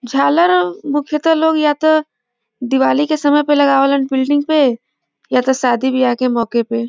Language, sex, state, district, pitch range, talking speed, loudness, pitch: Bhojpuri, female, Uttar Pradesh, Varanasi, 250-300 Hz, 175 wpm, -14 LUFS, 275 Hz